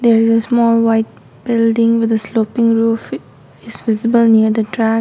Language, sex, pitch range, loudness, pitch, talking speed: English, female, 220-230 Hz, -14 LUFS, 225 Hz, 180 wpm